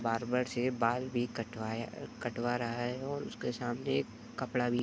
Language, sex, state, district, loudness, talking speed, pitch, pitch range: Hindi, male, Uttar Pradesh, Gorakhpur, -35 LUFS, 185 wpm, 120 Hz, 115-125 Hz